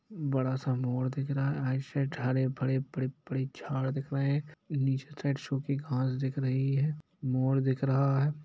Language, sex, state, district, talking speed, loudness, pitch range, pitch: Hindi, male, Bihar, East Champaran, 175 wpm, -31 LUFS, 130-140 Hz, 135 Hz